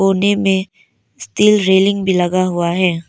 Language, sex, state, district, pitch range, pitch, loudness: Hindi, female, Arunachal Pradesh, Papum Pare, 170-195 Hz, 185 Hz, -14 LUFS